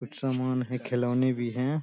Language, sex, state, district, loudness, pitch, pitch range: Hindi, male, Bihar, Saharsa, -29 LUFS, 125 Hz, 125-130 Hz